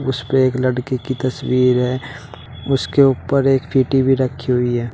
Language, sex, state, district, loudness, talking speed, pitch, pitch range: Hindi, male, Uttar Pradesh, Shamli, -17 LUFS, 170 wpm, 130 Hz, 125-135 Hz